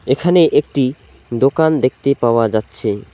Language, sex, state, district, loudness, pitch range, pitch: Bengali, male, West Bengal, Alipurduar, -15 LUFS, 110-140 Hz, 130 Hz